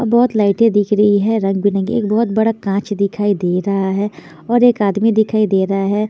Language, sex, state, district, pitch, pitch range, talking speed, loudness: Hindi, female, Chandigarh, Chandigarh, 205 Hz, 195-220 Hz, 225 wpm, -15 LUFS